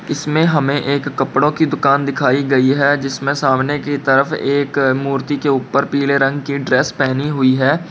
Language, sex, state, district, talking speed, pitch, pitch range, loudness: Hindi, male, Uttar Pradesh, Lalitpur, 180 wpm, 140 Hz, 135-145 Hz, -16 LUFS